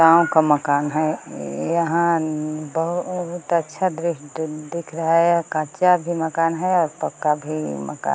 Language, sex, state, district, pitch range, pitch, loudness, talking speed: Hindi, female, Bihar, Kaimur, 155-170 Hz, 160 Hz, -21 LUFS, 170 wpm